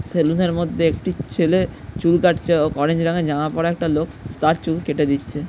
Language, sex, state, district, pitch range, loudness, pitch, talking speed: Bengali, male, West Bengal, Jhargram, 150-170 Hz, -20 LUFS, 165 Hz, 220 wpm